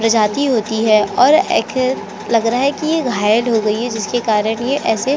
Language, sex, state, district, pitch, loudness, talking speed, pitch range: Hindi, female, Chhattisgarh, Korba, 230 Hz, -16 LUFS, 185 wpm, 220-260 Hz